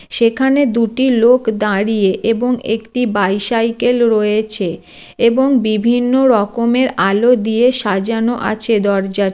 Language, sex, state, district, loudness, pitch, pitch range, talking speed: Bengali, female, West Bengal, Jalpaiguri, -14 LUFS, 230 Hz, 210-245 Hz, 105 wpm